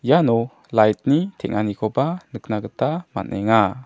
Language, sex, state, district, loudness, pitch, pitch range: Garo, male, Meghalaya, South Garo Hills, -21 LUFS, 115 Hz, 110-150 Hz